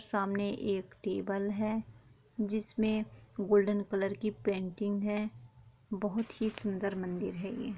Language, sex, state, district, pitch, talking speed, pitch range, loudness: Hindi, female, Chhattisgarh, Korba, 205 Hz, 125 wpm, 190-215 Hz, -34 LUFS